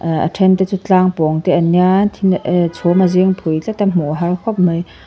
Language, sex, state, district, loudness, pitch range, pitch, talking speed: Mizo, female, Mizoram, Aizawl, -14 LUFS, 170-190 Hz, 180 Hz, 270 wpm